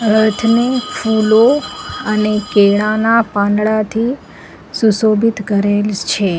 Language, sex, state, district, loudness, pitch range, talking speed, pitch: Gujarati, female, Gujarat, Valsad, -14 LUFS, 210-230 Hz, 75 wpm, 215 Hz